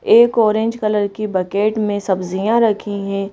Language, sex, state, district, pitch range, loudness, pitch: Hindi, female, Madhya Pradesh, Bhopal, 195-220 Hz, -17 LUFS, 210 Hz